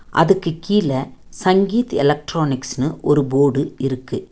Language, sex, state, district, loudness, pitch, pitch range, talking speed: Tamil, female, Tamil Nadu, Nilgiris, -18 LUFS, 145 Hz, 135-180 Hz, 95 wpm